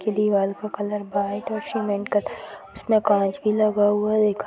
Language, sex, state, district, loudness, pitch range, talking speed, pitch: Hindi, female, Bihar, East Champaran, -23 LUFS, 200-215 Hz, 190 wpm, 205 Hz